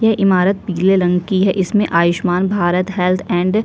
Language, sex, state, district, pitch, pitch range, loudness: Hindi, female, Chhattisgarh, Sukma, 185 Hz, 180-195 Hz, -15 LUFS